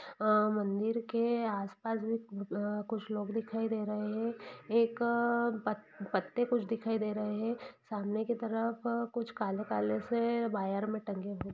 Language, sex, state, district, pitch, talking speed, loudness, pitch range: Hindi, female, Bihar, Saran, 220 Hz, 145 wpm, -34 LUFS, 210-230 Hz